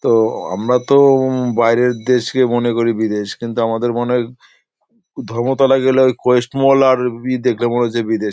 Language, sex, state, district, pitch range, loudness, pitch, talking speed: Bengali, male, West Bengal, Paschim Medinipur, 115-130 Hz, -15 LUFS, 125 Hz, 180 wpm